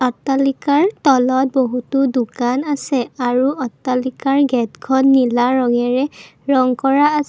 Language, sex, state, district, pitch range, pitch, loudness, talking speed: Assamese, female, Assam, Kamrup Metropolitan, 250-275 Hz, 260 Hz, -17 LUFS, 105 wpm